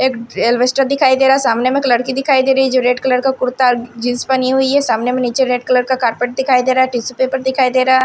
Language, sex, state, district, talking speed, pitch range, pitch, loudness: Hindi, female, Punjab, Kapurthala, 270 wpm, 245-265 Hz, 255 Hz, -14 LUFS